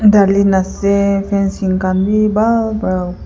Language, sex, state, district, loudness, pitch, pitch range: Nagamese, female, Nagaland, Kohima, -14 LUFS, 200 Hz, 190-210 Hz